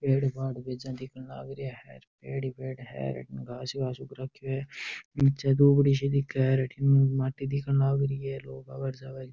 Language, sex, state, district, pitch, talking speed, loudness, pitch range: Marwari, male, Rajasthan, Nagaur, 135 Hz, 230 wpm, -28 LUFS, 130-135 Hz